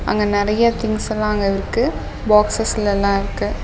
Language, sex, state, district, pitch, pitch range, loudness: Tamil, female, Tamil Nadu, Namakkal, 210 Hz, 200-215 Hz, -18 LUFS